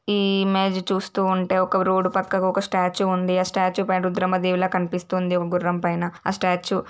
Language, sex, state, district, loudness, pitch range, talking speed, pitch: Telugu, female, Andhra Pradesh, Srikakulam, -22 LUFS, 180-190 Hz, 175 wpm, 185 Hz